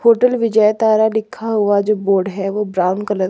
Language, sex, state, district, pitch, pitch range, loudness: Hindi, female, Jharkhand, Palamu, 210 Hz, 195-220 Hz, -16 LUFS